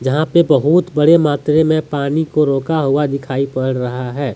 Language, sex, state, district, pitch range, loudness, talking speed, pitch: Hindi, male, Jharkhand, Deoghar, 135-155 Hz, -15 LUFS, 195 wpm, 145 Hz